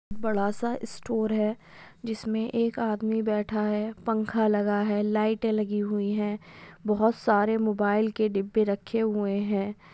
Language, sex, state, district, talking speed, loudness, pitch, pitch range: Hindi, female, Andhra Pradesh, Chittoor, 55 wpm, -27 LUFS, 215 Hz, 205-220 Hz